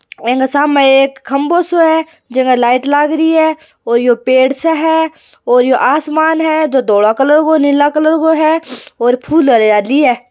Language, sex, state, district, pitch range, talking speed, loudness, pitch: Hindi, female, Rajasthan, Churu, 255-315 Hz, 185 wpm, -11 LUFS, 285 Hz